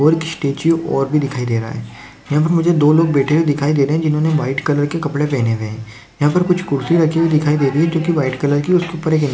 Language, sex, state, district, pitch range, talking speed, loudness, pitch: Hindi, male, Rajasthan, Churu, 140-160 Hz, 295 wpm, -16 LUFS, 150 Hz